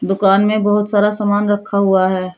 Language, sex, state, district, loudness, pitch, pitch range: Hindi, female, Uttar Pradesh, Shamli, -15 LUFS, 205 Hz, 195-210 Hz